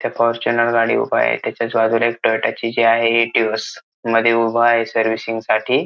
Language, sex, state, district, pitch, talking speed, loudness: Marathi, male, Maharashtra, Aurangabad, 115 Hz, 185 wpm, -17 LUFS